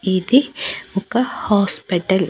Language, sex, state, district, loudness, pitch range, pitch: Telugu, female, Andhra Pradesh, Annamaya, -18 LUFS, 190-240 Hz, 195 Hz